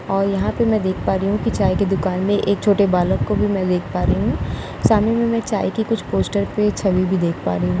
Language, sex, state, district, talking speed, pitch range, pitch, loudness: Hindi, female, Uttar Pradesh, Jalaun, 285 wpm, 185-210 Hz, 200 Hz, -19 LUFS